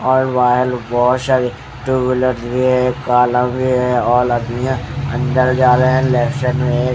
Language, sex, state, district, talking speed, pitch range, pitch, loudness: Hindi, male, Haryana, Charkhi Dadri, 170 wpm, 125-130 Hz, 125 Hz, -15 LUFS